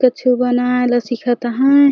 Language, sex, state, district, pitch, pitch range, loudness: Chhattisgarhi, female, Chhattisgarh, Jashpur, 250 Hz, 245-255 Hz, -16 LUFS